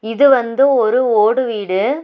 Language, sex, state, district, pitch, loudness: Tamil, female, Tamil Nadu, Nilgiris, 275 Hz, -14 LUFS